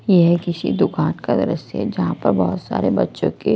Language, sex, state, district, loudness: Hindi, female, Punjab, Kapurthala, -19 LUFS